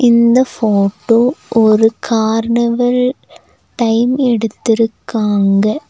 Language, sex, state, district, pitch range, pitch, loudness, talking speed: Tamil, female, Tamil Nadu, Nilgiris, 220-245 Hz, 230 Hz, -13 LUFS, 60 wpm